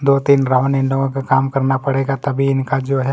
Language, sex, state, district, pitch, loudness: Hindi, male, Chhattisgarh, Kabirdham, 135 Hz, -17 LUFS